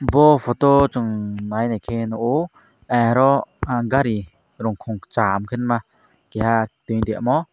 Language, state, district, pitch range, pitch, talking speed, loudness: Kokborok, Tripura, Dhalai, 110-130 Hz, 115 Hz, 125 wpm, -20 LUFS